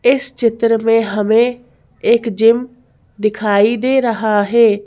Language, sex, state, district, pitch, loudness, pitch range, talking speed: Hindi, female, Madhya Pradesh, Bhopal, 230 Hz, -14 LUFS, 215-240 Hz, 125 wpm